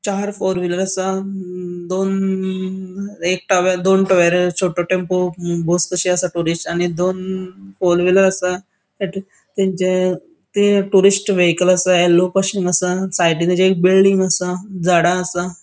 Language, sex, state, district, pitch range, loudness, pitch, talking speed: Konkani, male, Goa, North and South Goa, 180-190 Hz, -17 LUFS, 185 Hz, 140 wpm